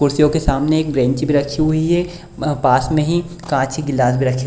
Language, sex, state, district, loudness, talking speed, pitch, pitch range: Hindi, female, Bihar, Supaul, -17 LUFS, 255 wpm, 150 Hz, 135-155 Hz